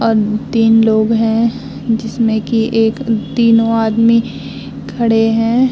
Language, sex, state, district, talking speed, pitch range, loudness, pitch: Hindi, female, Bihar, Vaishali, 125 wpm, 225-230 Hz, -13 LUFS, 225 Hz